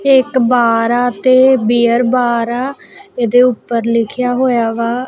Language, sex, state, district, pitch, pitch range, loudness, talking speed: Punjabi, female, Punjab, Kapurthala, 245 Hz, 235-255 Hz, -13 LUFS, 155 wpm